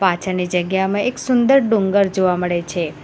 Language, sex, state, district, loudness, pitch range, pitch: Gujarati, female, Gujarat, Valsad, -17 LUFS, 180-200 Hz, 190 Hz